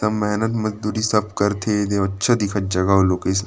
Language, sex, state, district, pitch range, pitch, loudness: Chhattisgarhi, male, Chhattisgarh, Rajnandgaon, 95-105 Hz, 105 Hz, -20 LUFS